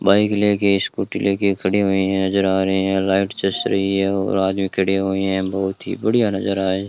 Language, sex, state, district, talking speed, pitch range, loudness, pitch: Hindi, male, Rajasthan, Bikaner, 215 wpm, 95-100 Hz, -19 LUFS, 95 Hz